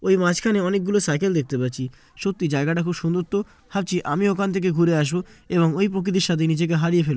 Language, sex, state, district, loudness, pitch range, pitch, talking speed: Bengali, male, West Bengal, Jalpaiguri, -22 LUFS, 165-195 Hz, 175 Hz, 210 wpm